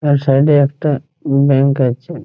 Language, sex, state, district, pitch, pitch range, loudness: Bengali, male, West Bengal, Jhargram, 140 Hz, 135-150 Hz, -14 LUFS